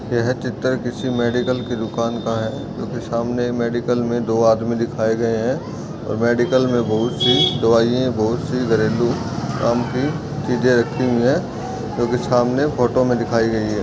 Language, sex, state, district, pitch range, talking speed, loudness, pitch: Hindi, male, Chhattisgarh, Raigarh, 115-125 Hz, 175 wpm, -19 LUFS, 120 Hz